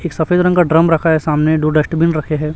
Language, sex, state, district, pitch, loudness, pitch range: Hindi, male, Chhattisgarh, Raipur, 160 Hz, -14 LUFS, 155-165 Hz